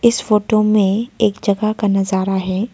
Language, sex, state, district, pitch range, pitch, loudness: Hindi, female, Arunachal Pradesh, Lower Dibang Valley, 195-215 Hz, 210 Hz, -16 LUFS